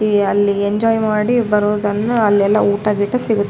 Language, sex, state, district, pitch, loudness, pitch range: Kannada, female, Karnataka, Raichur, 210 Hz, -15 LUFS, 205-220 Hz